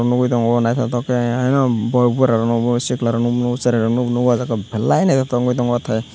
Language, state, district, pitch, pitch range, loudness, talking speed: Kokborok, Tripura, Dhalai, 120 Hz, 115-125 Hz, -17 LUFS, 175 wpm